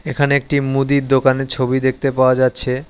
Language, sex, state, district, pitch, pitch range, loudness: Bengali, male, West Bengal, Alipurduar, 135 Hz, 130-140 Hz, -16 LUFS